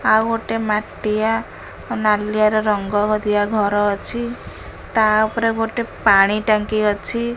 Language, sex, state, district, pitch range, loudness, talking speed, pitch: Odia, female, Odisha, Khordha, 210-225 Hz, -18 LUFS, 130 wpm, 215 Hz